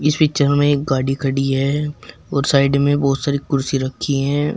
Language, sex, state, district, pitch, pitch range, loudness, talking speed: Hindi, male, Uttar Pradesh, Shamli, 140 Hz, 135-145 Hz, -18 LUFS, 185 wpm